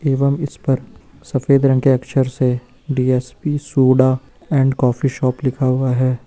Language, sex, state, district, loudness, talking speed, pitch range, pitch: Hindi, male, Uttar Pradesh, Lucknow, -17 LUFS, 155 wpm, 130-140 Hz, 130 Hz